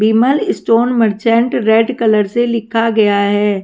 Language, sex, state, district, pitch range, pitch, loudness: Hindi, female, Haryana, Rohtak, 210-235 Hz, 225 Hz, -13 LUFS